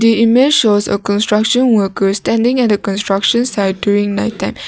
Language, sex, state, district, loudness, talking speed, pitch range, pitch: English, female, Nagaland, Kohima, -13 LUFS, 180 wpm, 200-235 Hz, 210 Hz